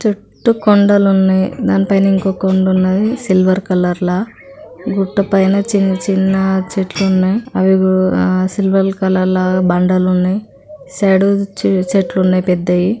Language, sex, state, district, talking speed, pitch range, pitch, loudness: Telugu, female, Andhra Pradesh, Chittoor, 130 wpm, 185-200 Hz, 190 Hz, -14 LUFS